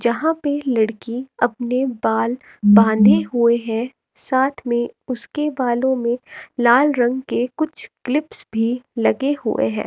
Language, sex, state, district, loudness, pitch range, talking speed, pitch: Hindi, female, Himachal Pradesh, Shimla, -19 LUFS, 230-265 Hz, 135 wpm, 245 Hz